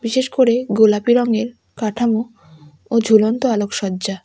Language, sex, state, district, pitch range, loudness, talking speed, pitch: Bengali, female, West Bengal, Alipurduar, 205-240 Hz, -17 LUFS, 115 wpm, 225 Hz